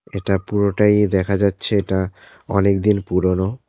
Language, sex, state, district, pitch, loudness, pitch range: Bengali, male, West Bengal, Cooch Behar, 100 Hz, -18 LUFS, 95-105 Hz